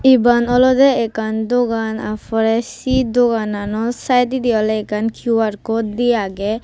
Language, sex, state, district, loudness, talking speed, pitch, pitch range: Chakma, female, Tripura, West Tripura, -17 LUFS, 135 wpm, 230 Hz, 220-245 Hz